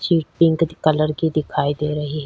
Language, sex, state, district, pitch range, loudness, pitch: Hindi, female, Chhattisgarh, Sukma, 150-160 Hz, -19 LUFS, 155 Hz